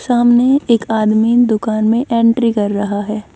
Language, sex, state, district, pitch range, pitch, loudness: Hindi, female, Haryana, Jhajjar, 215-240 Hz, 225 Hz, -14 LUFS